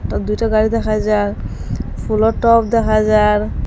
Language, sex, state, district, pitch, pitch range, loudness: Bengali, female, Assam, Hailakandi, 215 Hz, 210-225 Hz, -16 LUFS